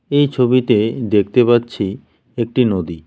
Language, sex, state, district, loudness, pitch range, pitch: Bengali, male, West Bengal, Cooch Behar, -16 LUFS, 110-125 Hz, 120 Hz